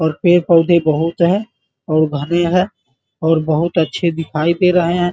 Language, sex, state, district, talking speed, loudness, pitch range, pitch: Hindi, male, Bihar, Muzaffarpur, 185 wpm, -15 LUFS, 155-175 Hz, 170 Hz